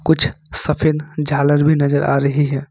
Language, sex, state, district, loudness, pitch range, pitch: Hindi, male, Jharkhand, Ranchi, -16 LUFS, 140-150 Hz, 145 Hz